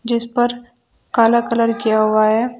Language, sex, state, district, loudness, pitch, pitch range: Hindi, female, Uttar Pradesh, Shamli, -16 LUFS, 235 Hz, 225-240 Hz